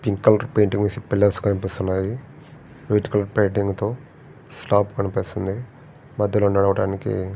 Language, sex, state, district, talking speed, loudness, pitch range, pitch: Telugu, male, Andhra Pradesh, Srikakulam, 115 wpm, -22 LUFS, 100-125 Hz, 105 Hz